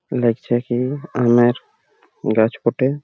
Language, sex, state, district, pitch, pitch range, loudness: Bengali, male, West Bengal, Jhargram, 120 Hz, 120-130 Hz, -19 LUFS